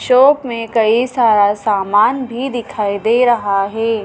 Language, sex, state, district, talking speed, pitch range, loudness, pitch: Hindi, female, Madhya Pradesh, Dhar, 145 wpm, 205-245 Hz, -14 LUFS, 225 Hz